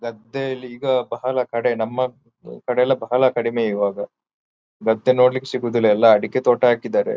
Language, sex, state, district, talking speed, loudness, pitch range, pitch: Kannada, male, Karnataka, Dakshina Kannada, 150 wpm, -19 LUFS, 115-130 Hz, 125 Hz